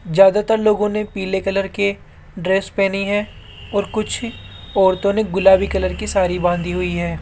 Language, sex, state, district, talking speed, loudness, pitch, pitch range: Hindi, male, Rajasthan, Jaipur, 165 wpm, -18 LUFS, 195 Hz, 190-205 Hz